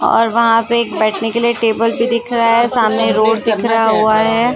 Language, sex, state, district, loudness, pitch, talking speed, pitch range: Hindi, female, Maharashtra, Gondia, -14 LUFS, 230 Hz, 250 wpm, 220-235 Hz